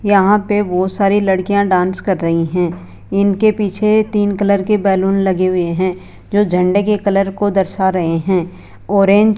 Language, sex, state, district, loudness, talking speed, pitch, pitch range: Hindi, female, Rajasthan, Jaipur, -15 LUFS, 180 wpm, 195 Hz, 185-205 Hz